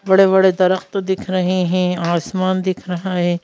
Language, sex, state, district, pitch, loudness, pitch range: Hindi, female, Madhya Pradesh, Bhopal, 185 Hz, -17 LUFS, 180-190 Hz